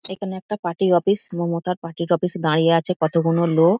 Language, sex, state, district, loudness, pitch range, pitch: Bengali, female, West Bengal, Dakshin Dinajpur, -21 LUFS, 165-185 Hz, 175 Hz